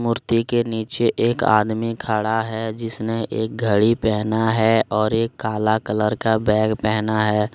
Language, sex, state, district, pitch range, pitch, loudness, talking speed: Hindi, male, Jharkhand, Deoghar, 110-115 Hz, 110 Hz, -20 LUFS, 160 wpm